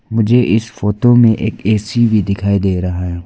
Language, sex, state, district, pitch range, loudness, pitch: Hindi, female, Arunachal Pradesh, Lower Dibang Valley, 100-115 Hz, -14 LUFS, 110 Hz